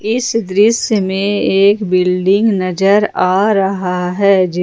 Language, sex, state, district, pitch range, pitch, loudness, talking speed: Hindi, female, Jharkhand, Ranchi, 185-210 Hz, 195 Hz, -13 LUFS, 145 wpm